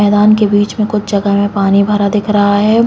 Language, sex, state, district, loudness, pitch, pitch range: Hindi, female, Uttarakhand, Uttarkashi, -12 LUFS, 205 Hz, 200-210 Hz